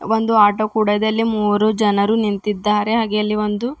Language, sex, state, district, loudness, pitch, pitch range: Kannada, female, Karnataka, Bidar, -17 LUFS, 210 Hz, 210-220 Hz